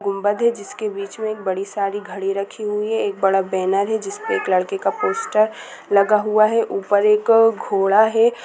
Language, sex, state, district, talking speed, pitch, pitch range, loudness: Hindi, female, Bihar, Sitamarhi, 200 wpm, 210 Hz, 200-220 Hz, -19 LUFS